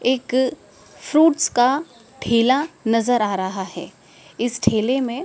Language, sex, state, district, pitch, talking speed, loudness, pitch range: Hindi, female, Madhya Pradesh, Dhar, 245 Hz, 125 wpm, -20 LUFS, 230-265 Hz